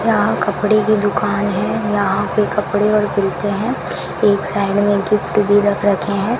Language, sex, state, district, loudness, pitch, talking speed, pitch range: Hindi, female, Rajasthan, Bikaner, -16 LUFS, 205 Hz, 180 wpm, 200-210 Hz